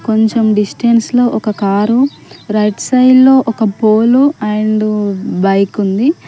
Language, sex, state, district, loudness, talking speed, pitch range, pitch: Telugu, female, Telangana, Mahabubabad, -12 LUFS, 125 wpm, 210-245 Hz, 220 Hz